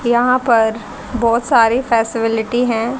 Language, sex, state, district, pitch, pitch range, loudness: Hindi, female, Haryana, Charkhi Dadri, 235 Hz, 225-245 Hz, -15 LUFS